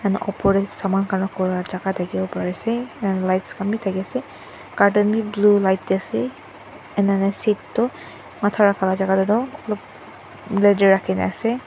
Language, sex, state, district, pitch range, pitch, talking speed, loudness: Nagamese, female, Nagaland, Dimapur, 190-210 Hz, 195 Hz, 175 wpm, -21 LUFS